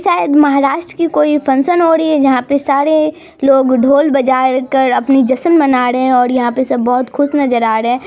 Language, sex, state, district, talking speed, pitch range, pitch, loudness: Hindi, female, Bihar, Araria, 215 wpm, 255-295 Hz, 275 Hz, -12 LUFS